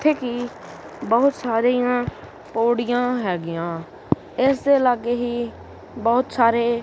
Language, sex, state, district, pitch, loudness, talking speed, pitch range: Punjabi, female, Punjab, Kapurthala, 240 Hz, -21 LUFS, 105 wpm, 230-250 Hz